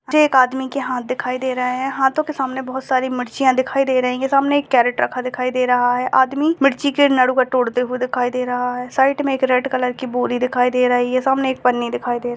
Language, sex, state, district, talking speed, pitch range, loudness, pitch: Hindi, female, Chhattisgarh, Kabirdham, 240 wpm, 250-265 Hz, -18 LUFS, 255 Hz